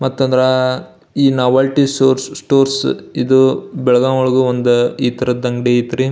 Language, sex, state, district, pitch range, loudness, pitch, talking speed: Kannada, male, Karnataka, Belgaum, 125-135 Hz, -14 LUFS, 130 Hz, 125 wpm